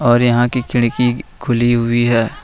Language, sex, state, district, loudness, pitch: Hindi, male, Jharkhand, Ranchi, -15 LUFS, 120 Hz